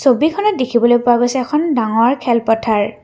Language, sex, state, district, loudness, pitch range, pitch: Assamese, female, Assam, Kamrup Metropolitan, -15 LUFS, 235-275 Hz, 240 Hz